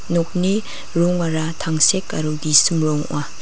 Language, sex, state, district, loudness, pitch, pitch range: Garo, female, Meghalaya, West Garo Hills, -18 LUFS, 165 Hz, 155-180 Hz